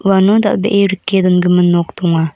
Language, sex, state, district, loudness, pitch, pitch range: Garo, female, Meghalaya, North Garo Hills, -12 LUFS, 190 Hz, 175-200 Hz